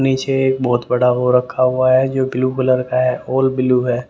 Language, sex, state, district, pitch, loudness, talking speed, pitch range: Hindi, male, Haryana, Jhajjar, 130 Hz, -16 LUFS, 235 wpm, 125-130 Hz